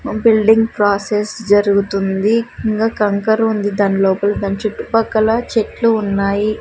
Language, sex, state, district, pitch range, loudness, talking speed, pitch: Telugu, female, Andhra Pradesh, Sri Satya Sai, 200-225 Hz, -15 LUFS, 120 wpm, 210 Hz